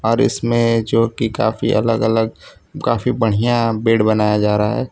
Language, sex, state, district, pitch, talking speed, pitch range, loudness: Hindi, male, Gujarat, Valsad, 115 Hz, 170 wpm, 110-115 Hz, -17 LUFS